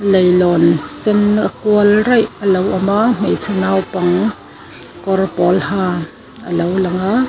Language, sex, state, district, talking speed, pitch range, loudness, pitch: Mizo, female, Mizoram, Aizawl, 150 wpm, 180-210 Hz, -15 LUFS, 190 Hz